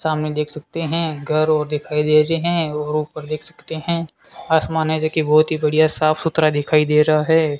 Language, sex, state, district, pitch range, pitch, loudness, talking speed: Hindi, male, Rajasthan, Bikaner, 150-160 Hz, 155 Hz, -18 LUFS, 215 wpm